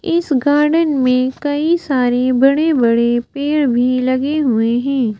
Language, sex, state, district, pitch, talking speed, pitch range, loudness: Hindi, female, Madhya Pradesh, Bhopal, 270 Hz, 125 wpm, 250-295 Hz, -15 LUFS